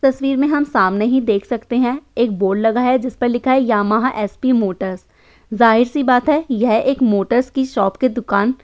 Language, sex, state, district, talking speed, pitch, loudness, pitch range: Hindi, female, Uttar Pradesh, Hamirpur, 210 wpm, 240 Hz, -16 LUFS, 215-260 Hz